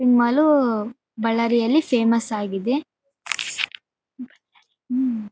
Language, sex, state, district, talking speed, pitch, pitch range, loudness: Kannada, female, Karnataka, Bellary, 55 wpm, 245 Hz, 230-260 Hz, -21 LUFS